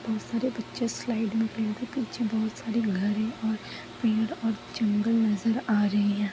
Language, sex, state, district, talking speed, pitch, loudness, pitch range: Hindi, female, Chhattisgarh, Balrampur, 190 wpm, 225 Hz, -28 LUFS, 215-230 Hz